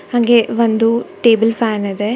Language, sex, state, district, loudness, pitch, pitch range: Kannada, female, Karnataka, Bangalore, -14 LUFS, 225 Hz, 215-235 Hz